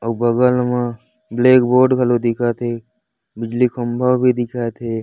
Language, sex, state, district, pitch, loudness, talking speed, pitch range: Chhattisgarhi, male, Chhattisgarh, Raigarh, 120 Hz, -17 LUFS, 155 wpm, 120-125 Hz